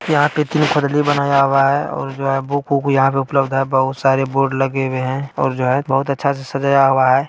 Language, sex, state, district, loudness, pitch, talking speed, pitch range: Maithili, male, Bihar, Purnia, -17 LUFS, 135 Hz, 255 wpm, 135-140 Hz